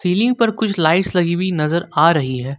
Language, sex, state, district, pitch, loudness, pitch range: Hindi, male, Jharkhand, Ranchi, 175 Hz, -17 LUFS, 160-190 Hz